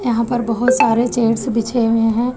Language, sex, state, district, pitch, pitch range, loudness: Hindi, female, Telangana, Hyderabad, 235 Hz, 225-245 Hz, -16 LUFS